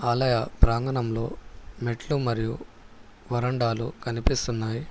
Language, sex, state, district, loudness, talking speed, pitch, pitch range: Telugu, male, Telangana, Hyderabad, -27 LUFS, 75 wpm, 120 Hz, 115-125 Hz